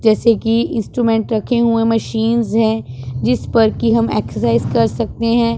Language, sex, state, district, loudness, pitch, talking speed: Hindi, female, Punjab, Pathankot, -16 LUFS, 225 Hz, 160 wpm